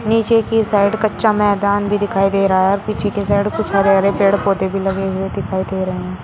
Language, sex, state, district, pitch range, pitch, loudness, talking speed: Hindi, female, Uttar Pradesh, Shamli, 195-210 Hz, 200 Hz, -16 LUFS, 230 wpm